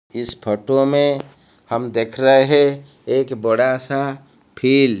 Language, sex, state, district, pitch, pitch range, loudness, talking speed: Hindi, male, Odisha, Malkangiri, 135 Hz, 120-140 Hz, -18 LUFS, 145 wpm